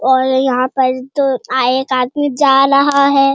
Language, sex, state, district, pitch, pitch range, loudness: Hindi, male, Bihar, Jamui, 265 Hz, 260-275 Hz, -13 LUFS